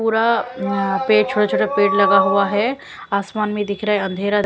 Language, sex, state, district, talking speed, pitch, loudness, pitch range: Hindi, female, Punjab, Kapurthala, 190 wpm, 200 Hz, -18 LUFS, 190-210 Hz